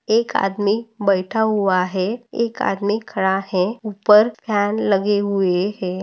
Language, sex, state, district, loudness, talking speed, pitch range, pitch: Hindi, female, Maharashtra, Nagpur, -19 LUFS, 140 wpm, 190-220 Hz, 205 Hz